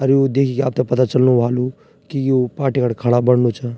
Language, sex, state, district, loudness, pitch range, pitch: Garhwali, male, Uttarakhand, Tehri Garhwal, -17 LUFS, 125-135 Hz, 130 Hz